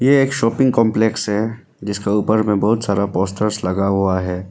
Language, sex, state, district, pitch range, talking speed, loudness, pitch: Hindi, male, Arunachal Pradesh, Lower Dibang Valley, 100-110 Hz, 185 wpm, -18 LUFS, 105 Hz